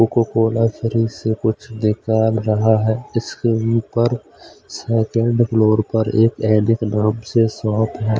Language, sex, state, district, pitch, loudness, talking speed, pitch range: Hindi, male, Odisha, Khordha, 110 Hz, -18 LUFS, 130 wpm, 110-115 Hz